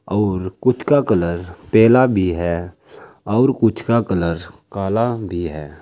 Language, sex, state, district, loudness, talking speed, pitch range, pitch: Hindi, male, Uttar Pradesh, Saharanpur, -18 LUFS, 145 wpm, 85-115 Hz, 95 Hz